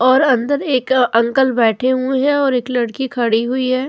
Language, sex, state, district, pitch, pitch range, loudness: Hindi, female, Goa, North and South Goa, 255 Hz, 245-265 Hz, -16 LUFS